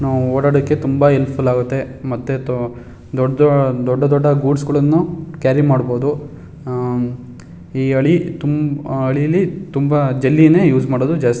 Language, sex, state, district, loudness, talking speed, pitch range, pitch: Kannada, male, Karnataka, Shimoga, -16 LUFS, 110 wpm, 130-145 Hz, 135 Hz